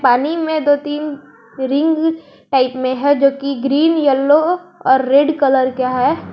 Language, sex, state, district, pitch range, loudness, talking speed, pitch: Hindi, female, Jharkhand, Garhwa, 265-310 Hz, -15 LUFS, 150 wpm, 280 Hz